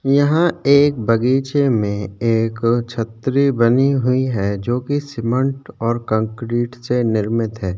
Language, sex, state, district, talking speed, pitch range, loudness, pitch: Hindi, male, Chhattisgarh, Sukma, 130 wpm, 115-135 Hz, -18 LUFS, 120 Hz